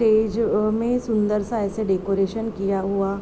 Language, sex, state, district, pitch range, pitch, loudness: Hindi, female, Uttar Pradesh, Deoria, 195-225 Hz, 210 Hz, -22 LUFS